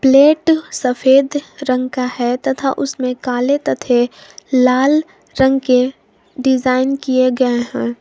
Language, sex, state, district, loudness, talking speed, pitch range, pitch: Hindi, female, Jharkhand, Garhwa, -15 LUFS, 120 wpm, 255-275 Hz, 260 Hz